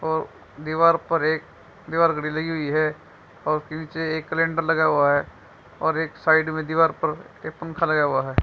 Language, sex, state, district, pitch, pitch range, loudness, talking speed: Hindi, female, Haryana, Charkhi Dadri, 160 Hz, 155-165 Hz, -23 LUFS, 200 wpm